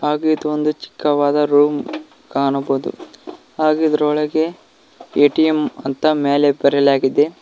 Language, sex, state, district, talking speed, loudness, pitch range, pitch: Kannada, male, Karnataka, Koppal, 95 wpm, -17 LUFS, 140-155 Hz, 150 Hz